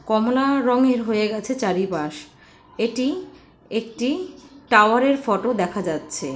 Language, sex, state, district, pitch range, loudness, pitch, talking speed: Bengali, female, West Bengal, Purulia, 195-260 Hz, -21 LUFS, 225 Hz, 115 wpm